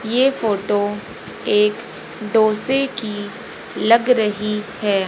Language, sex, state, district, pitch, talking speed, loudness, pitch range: Hindi, female, Haryana, Rohtak, 215 Hz, 95 wpm, -18 LUFS, 210-230 Hz